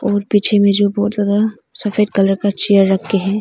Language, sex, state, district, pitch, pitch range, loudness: Hindi, female, Arunachal Pradesh, Longding, 205 Hz, 200-210 Hz, -15 LUFS